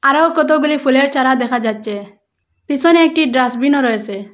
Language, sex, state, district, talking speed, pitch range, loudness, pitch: Bengali, female, Assam, Hailakandi, 150 wpm, 220-300 Hz, -14 LUFS, 265 Hz